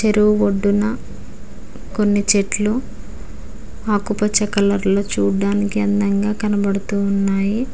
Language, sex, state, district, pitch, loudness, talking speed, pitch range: Telugu, female, Telangana, Mahabubabad, 205 Hz, -18 LUFS, 85 wpm, 200-210 Hz